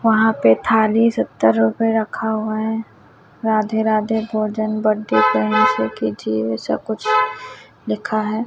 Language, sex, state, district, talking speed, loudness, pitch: Hindi, male, Chhattisgarh, Raipur, 120 wpm, -18 LUFS, 215 Hz